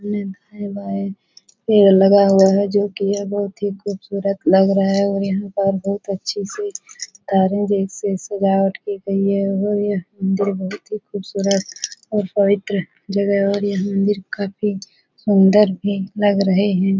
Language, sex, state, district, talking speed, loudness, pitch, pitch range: Hindi, female, Bihar, Supaul, 150 wpm, -18 LUFS, 200 Hz, 195-205 Hz